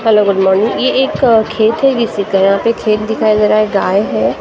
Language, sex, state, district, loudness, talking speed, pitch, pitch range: Hindi, female, Maharashtra, Gondia, -12 LUFS, 260 wpm, 215 Hz, 200-225 Hz